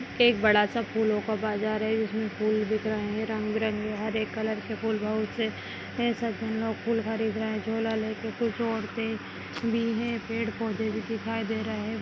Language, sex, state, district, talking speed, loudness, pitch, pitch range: Kumaoni, female, Uttarakhand, Tehri Garhwal, 195 wpm, -29 LUFS, 220 Hz, 215-225 Hz